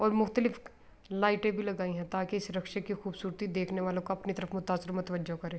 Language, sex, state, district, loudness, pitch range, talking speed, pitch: Urdu, female, Andhra Pradesh, Anantapur, -34 LUFS, 185-205 Hz, 205 wpm, 190 Hz